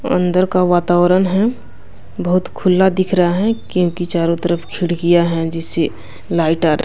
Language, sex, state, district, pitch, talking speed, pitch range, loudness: Hindi, female, Bihar, West Champaran, 175 Hz, 165 wpm, 170-185 Hz, -16 LUFS